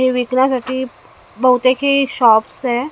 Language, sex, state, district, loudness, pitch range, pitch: Marathi, female, Maharashtra, Mumbai Suburban, -15 LUFS, 250-265 Hz, 255 Hz